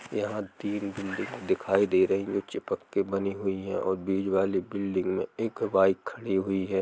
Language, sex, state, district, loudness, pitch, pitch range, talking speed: Hindi, male, Jharkhand, Jamtara, -29 LUFS, 95 Hz, 95-100 Hz, 195 wpm